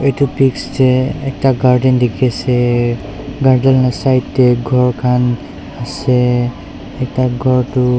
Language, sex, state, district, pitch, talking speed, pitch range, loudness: Nagamese, male, Nagaland, Dimapur, 125 Hz, 120 wpm, 125-135 Hz, -14 LUFS